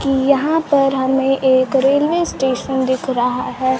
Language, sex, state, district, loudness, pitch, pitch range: Hindi, female, Bihar, Kaimur, -16 LUFS, 265 Hz, 260-280 Hz